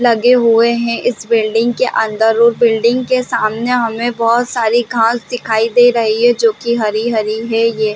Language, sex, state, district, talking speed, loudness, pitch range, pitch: Hindi, female, Chhattisgarh, Balrampur, 205 wpm, -13 LUFS, 225-240 Hz, 230 Hz